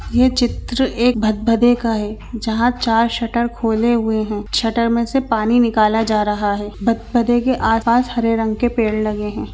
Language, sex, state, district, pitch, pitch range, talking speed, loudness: Hindi, female, Chhattisgarh, Bilaspur, 230 Hz, 215-240 Hz, 180 wpm, -17 LUFS